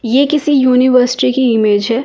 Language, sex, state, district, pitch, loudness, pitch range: Hindi, female, Delhi, New Delhi, 250 Hz, -11 LUFS, 235-265 Hz